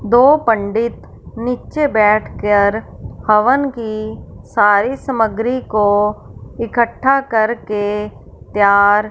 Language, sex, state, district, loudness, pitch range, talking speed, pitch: Hindi, female, Punjab, Fazilka, -15 LUFS, 210-245 Hz, 80 wpm, 220 Hz